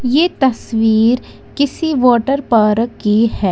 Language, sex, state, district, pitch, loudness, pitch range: Hindi, female, Uttar Pradesh, Lalitpur, 240 Hz, -14 LUFS, 225-275 Hz